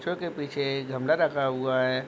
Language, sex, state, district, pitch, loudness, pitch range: Hindi, male, Bihar, Sitamarhi, 135 Hz, -27 LUFS, 130-145 Hz